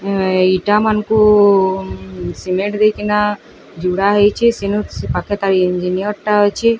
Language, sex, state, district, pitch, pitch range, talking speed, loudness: Odia, female, Odisha, Sambalpur, 200 Hz, 185-210 Hz, 125 wpm, -15 LUFS